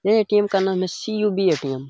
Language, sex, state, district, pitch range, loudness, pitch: Hindi, male, Bihar, Jamui, 185-210 Hz, -21 LUFS, 195 Hz